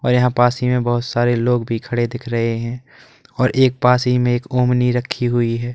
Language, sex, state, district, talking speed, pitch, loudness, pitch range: Hindi, male, Uttar Pradesh, Lalitpur, 240 wpm, 125 Hz, -18 LUFS, 120-125 Hz